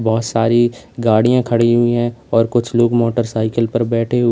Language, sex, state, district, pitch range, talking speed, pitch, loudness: Hindi, male, Uttar Pradesh, Lalitpur, 115-120 Hz, 180 wpm, 115 Hz, -16 LUFS